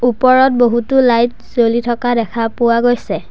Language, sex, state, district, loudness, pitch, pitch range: Assamese, male, Assam, Sonitpur, -13 LUFS, 240 Hz, 230-245 Hz